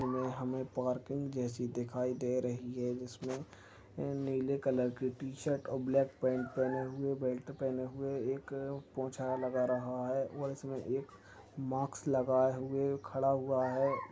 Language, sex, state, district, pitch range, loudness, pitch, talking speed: Hindi, male, Maharashtra, Nagpur, 125-135 Hz, -36 LUFS, 130 Hz, 150 wpm